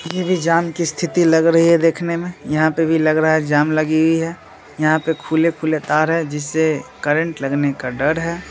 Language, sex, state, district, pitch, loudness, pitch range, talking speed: Hindi, male, Bihar, Muzaffarpur, 160 Hz, -17 LUFS, 155-165 Hz, 220 wpm